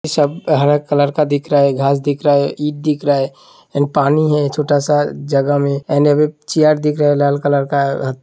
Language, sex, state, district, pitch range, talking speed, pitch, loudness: Hindi, male, Uttar Pradesh, Hamirpur, 140-150 Hz, 225 wpm, 145 Hz, -15 LUFS